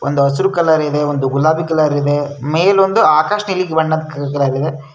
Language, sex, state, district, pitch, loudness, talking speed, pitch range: Kannada, male, Karnataka, Shimoga, 155 Hz, -15 LUFS, 180 wpm, 145-160 Hz